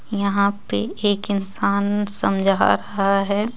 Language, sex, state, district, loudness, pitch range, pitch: Hindi, female, Jharkhand, Ranchi, -20 LUFS, 195-205 Hz, 200 Hz